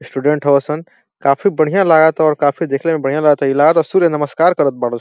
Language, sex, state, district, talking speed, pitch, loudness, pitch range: Bhojpuri, male, Uttar Pradesh, Deoria, 240 wpm, 150 Hz, -14 LUFS, 140-165 Hz